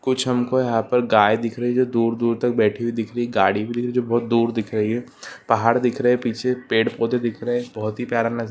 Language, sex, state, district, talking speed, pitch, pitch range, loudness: Hindi, male, Uttarakhand, Uttarkashi, 290 wpm, 120 Hz, 115-125 Hz, -21 LUFS